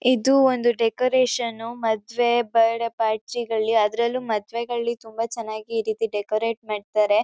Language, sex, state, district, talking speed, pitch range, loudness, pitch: Kannada, female, Karnataka, Chamarajanagar, 115 wpm, 220-240 Hz, -23 LUFS, 230 Hz